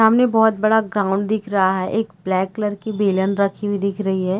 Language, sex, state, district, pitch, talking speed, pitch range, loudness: Hindi, female, Chhattisgarh, Bilaspur, 205 Hz, 230 wpm, 190-220 Hz, -19 LUFS